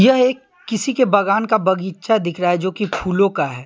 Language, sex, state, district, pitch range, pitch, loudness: Hindi, male, Bihar, Patna, 185-230 Hz, 200 Hz, -18 LUFS